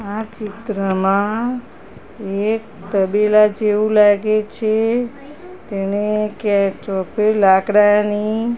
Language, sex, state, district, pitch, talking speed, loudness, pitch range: Gujarati, female, Gujarat, Gandhinagar, 210 Hz, 65 wpm, -17 LUFS, 200-220 Hz